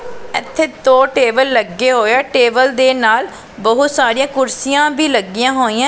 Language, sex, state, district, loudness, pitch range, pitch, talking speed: Punjabi, female, Punjab, Pathankot, -13 LUFS, 235-280 Hz, 260 Hz, 155 wpm